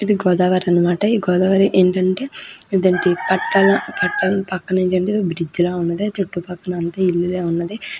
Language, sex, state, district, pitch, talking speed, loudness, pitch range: Telugu, female, Andhra Pradesh, Krishna, 185 Hz, 105 wpm, -18 LUFS, 180-195 Hz